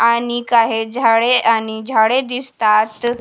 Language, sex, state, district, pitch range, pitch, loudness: Marathi, female, Maharashtra, Washim, 225-240 Hz, 230 Hz, -15 LUFS